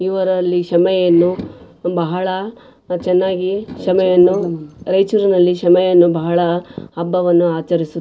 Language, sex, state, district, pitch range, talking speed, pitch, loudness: Kannada, female, Karnataka, Raichur, 175-185 Hz, 80 wpm, 180 Hz, -15 LUFS